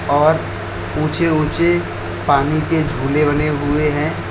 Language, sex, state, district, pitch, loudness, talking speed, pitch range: Hindi, male, Uttar Pradesh, Lalitpur, 150 Hz, -17 LUFS, 125 wpm, 115-155 Hz